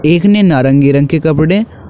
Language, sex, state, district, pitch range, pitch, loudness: Hindi, male, Uttar Pradesh, Shamli, 140-190 Hz, 160 Hz, -10 LUFS